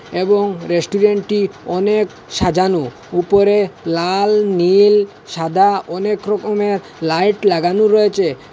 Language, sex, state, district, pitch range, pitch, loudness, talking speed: Bengali, male, Assam, Hailakandi, 180-205 Hz, 200 Hz, -15 LUFS, 90 wpm